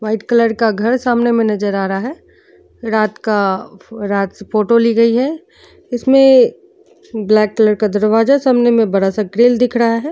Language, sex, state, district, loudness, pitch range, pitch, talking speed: Hindi, female, Uttar Pradesh, Jyotiba Phule Nagar, -14 LUFS, 215-245 Hz, 230 Hz, 185 wpm